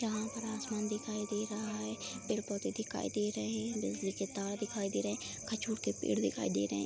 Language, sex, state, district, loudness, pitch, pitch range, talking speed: Hindi, female, Bihar, Begusarai, -37 LUFS, 210 Hz, 195-220 Hz, 225 wpm